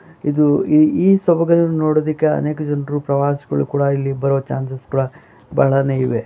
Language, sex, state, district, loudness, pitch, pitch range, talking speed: Kannada, male, Karnataka, Bellary, -17 LUFS, 145 Hz, 135-155 Hz, 145 wpm